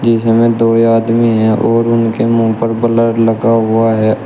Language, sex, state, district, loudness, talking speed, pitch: Hindi, male, Uttar Pradesh, Shamli, -11 LUFS, 170 wpm, 115 Hz